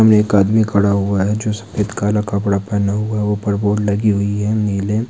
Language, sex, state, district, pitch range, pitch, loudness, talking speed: Hindi, male, Bihar, Saran, 100-105 Hz, 105 Hz, -17 LUFS, 235 wpm